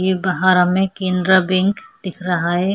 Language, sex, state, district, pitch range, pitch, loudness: Hindi, female, Chhattisgarh, Kabirdham, 180-190 Hz, 185 Hz, -17 LUFS